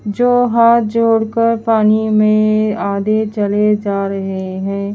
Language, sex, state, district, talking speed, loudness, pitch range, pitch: Hindi, female, Haryana, Charkhi Dadri, 135 wpm, -14 LUFS, 200-230 Hz, 215 Hz